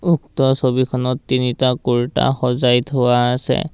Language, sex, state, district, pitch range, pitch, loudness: Assamese, male, Assam, Kamrup Metropolitan, 125-135 Hz, 125 Hz, -17 LUFS